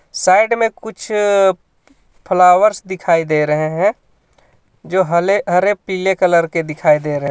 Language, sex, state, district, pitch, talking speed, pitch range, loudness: Hindi, male, Jharkhand, Ranchi, 185 Hz, 140 wpm, 165-195 Hz, -15 LUFS